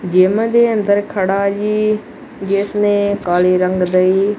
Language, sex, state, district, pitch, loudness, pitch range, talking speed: Punjabi, male, Punjab, Kapurthala, 200 Hz, -15 LUFS, 185-210 Hz, 135 wpm